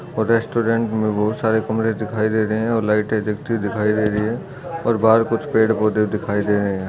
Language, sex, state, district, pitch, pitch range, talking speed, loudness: Hindi, male, Uttar Pradesh, Etah, 110 Hz, 105-115 Hz, 225 wpm, -19 LUFS